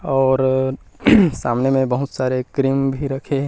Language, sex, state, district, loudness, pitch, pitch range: Chhattisgarhi, male, Chhattisgarh, Rajnandgaon, -18 LUFS, 135 Hz, 130-135 Hz